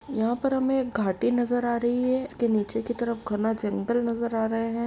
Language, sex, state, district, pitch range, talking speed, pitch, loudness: Hindi, female, Uttar Pradesh, Etah, 225-245 Hz, 235 wpm, 235 Hz, -26 LUFS